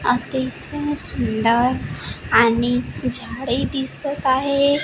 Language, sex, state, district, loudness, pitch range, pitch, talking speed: Marathi, female, Maharashtra, Gondia, -20 LUFS, 240-280 Hz, 260 Hz, 75 wpm